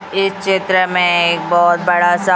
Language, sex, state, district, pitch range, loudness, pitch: Hindi, male, Chhattisgarh, Raipur, 175-190 Hz, -14 LUFS, 180 Hz